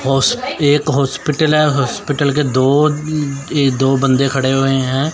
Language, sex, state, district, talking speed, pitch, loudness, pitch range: Hindi, male, Chandigarh, Chandigarh, 140 wpm, 140 Hz, -15 LUFS, 135-150 Hz